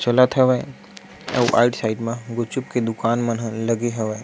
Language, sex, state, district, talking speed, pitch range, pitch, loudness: Chhattisgarhi, male, Chhattisgarh, Sukma, 185 wpm, 115-120 Hz, 115 Hz, -21 LUFS